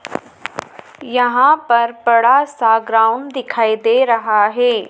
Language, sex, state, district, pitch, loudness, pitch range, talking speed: Hindi, female, Madhya Pradesh, Dhar, 235 Hz, -14 LUFS, 225-255 Hz, 110 wpm